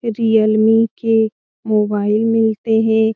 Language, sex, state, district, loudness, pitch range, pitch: Hindi, female, Bihar, Jamui, -15 LUFS, 215-225 Hz, 220 Hz